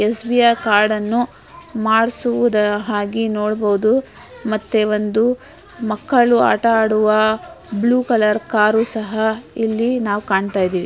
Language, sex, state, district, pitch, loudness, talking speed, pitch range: Kannada, female, Karnataka, Dharwad, 220 Hz, -17 LUFS, 105 wpm, 210-235 Hz